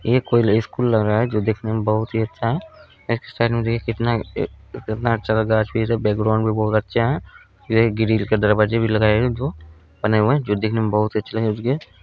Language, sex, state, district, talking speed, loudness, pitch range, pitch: Bhojpuri, male, Bihar, Saran, 210 wpm, -20 LUFS, 105-115 Hz, 110 Hz